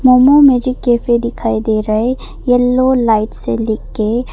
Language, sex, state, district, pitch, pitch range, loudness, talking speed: Hindi, female, Arunachal Pradesh, Papum Pare, 240 Hz, 220-255 Hz, -13 LUFS, 165 wpm